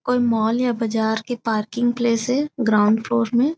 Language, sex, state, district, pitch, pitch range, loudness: Chhattisgarhi, female, Chhattisgarh, Raigarh, 235 Hz, 220-245 Hz, -20 LUFS